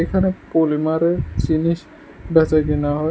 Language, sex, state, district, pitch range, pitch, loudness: Bengali, male, Tripura, West Tripura, 150-165 Hz, 160 Hz, -19 LUFS